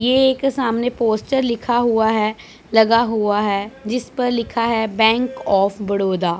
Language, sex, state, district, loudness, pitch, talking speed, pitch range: Hindi, female, Punjab, Pathankot, -18 LUFS, 225 Hz, 170 wpm, 215-245 Hz